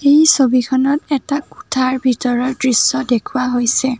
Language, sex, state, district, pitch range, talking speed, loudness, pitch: Assamese, female, Assam, Kamrup Metropolitan, 250-280 Hz, 120 wpm, -15 LUFS, 260 Hz